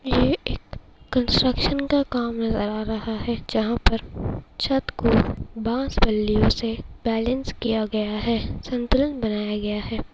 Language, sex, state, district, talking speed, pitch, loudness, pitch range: Hindi, female, Bihar, Saharsa, 135 wpm, 230 Hz, -24 LUFS, 215-250 Hz